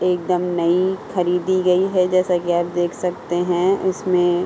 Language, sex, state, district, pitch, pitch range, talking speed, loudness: Hindi, female, Uttar Pradesh, Hamirpur, 180 Hz, 175-185 Hz, 190 wpm, -19 LUFS